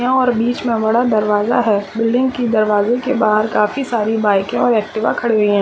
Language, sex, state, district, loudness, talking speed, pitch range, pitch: Hindi, female, Jharkhand, Sahebganj, -16 LUFS, 190 wpm, 210-245 Hz, 225 Hz